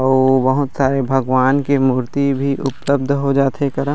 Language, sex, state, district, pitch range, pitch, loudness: Chhattisgarhi, male, Chhattisgarh, Raigarh, 130-140 Hz, 135 Hz, -16 LUFS